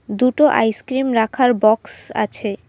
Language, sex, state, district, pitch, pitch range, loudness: Bengali, female, Assam, Kamrup Metropolitan, 225 Hz, 215-255 Hz, -17 LUFS